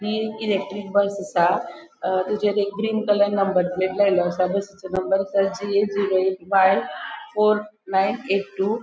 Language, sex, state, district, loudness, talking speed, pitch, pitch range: Konkani, female, Goa, North and South Goa, -22 LUFS, 170 wpm, 200 Hz, 190-205 Hz